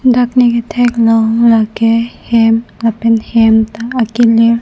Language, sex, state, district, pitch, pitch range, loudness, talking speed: Karbi, female, Assam, Karbi Anglong, 230 Hz, 225-235 Hz, -11 LUFS, 130 wpm